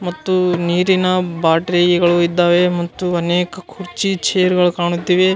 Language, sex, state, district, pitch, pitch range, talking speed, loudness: Kannada, male, Karnataka, Gulbarga, 175 Hz, 175-185 Hz, 110 wpm, -16 LUFS